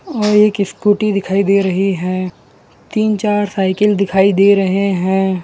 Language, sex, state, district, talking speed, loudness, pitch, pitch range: Hindi, male, Gujarat, Valsad, 155 wpm, -14 LUFS, 200 Hz, 190-210 Hz